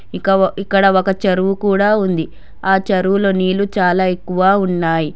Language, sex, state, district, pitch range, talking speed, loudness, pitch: Telugu, female, Telangana, Hyderabad, 185-195 Hz, 140 wpm, -15 LUFS, 190 Hz